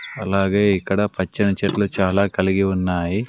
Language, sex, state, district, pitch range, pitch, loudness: Telugu, male, Andhra Pradesh, Sri Satya Sai, 95-100 Hz, 100 Hz, -20 LUFS